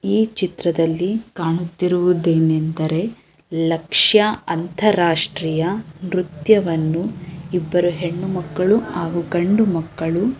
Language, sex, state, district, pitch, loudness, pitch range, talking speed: Kannada, female, Karnataka, Chamarajanagar, 175 Hz, -19 LUFS, 165-190 Hz, 80 wpm